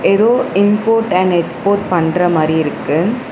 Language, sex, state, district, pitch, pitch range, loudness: Tamil, female, Tamil Nadu, Chennai, 185 Hz, 165-210 Hz, -14 LUFS